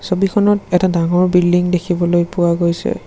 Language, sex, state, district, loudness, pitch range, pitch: Assamese, male, Assam, Sonitpur, -15 LUFS, 175-185 Hz, 180 Hz